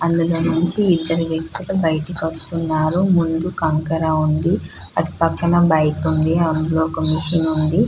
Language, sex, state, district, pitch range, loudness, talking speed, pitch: Telugu, female, Andhra Pradesh, Chittoor, 155-170 Hz, -18 LUFS, 120 wpm, 160 Hz